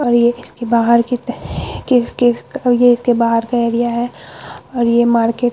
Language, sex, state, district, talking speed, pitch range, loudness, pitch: Hindi, female, Bihar, Vaishali, 160 wpm, 235-245 Hz, -15 LUFS, 240 Hz